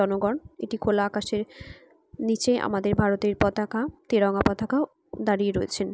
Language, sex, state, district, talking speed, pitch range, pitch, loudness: Bengali, female, West Bengal, Purulia, 120 wpm, 200-225 Hz, 210 Hz, -26 LUFS